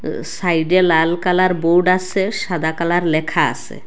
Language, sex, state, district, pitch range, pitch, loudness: Bengali, female, Assam, Hailakandi, 165-185 Hz, 175 Hz, -17 LUFS